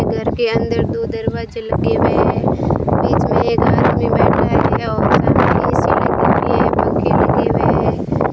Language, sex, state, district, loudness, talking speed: Hindi, female, Rajasthan, Bikaner, -15 LUFS, 175 wpm